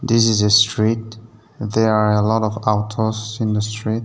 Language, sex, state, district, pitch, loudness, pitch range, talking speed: English, male, Nagaland, Dimapur, 110 Hz, -18 LUFS, 105-110 Hz, 205 wpm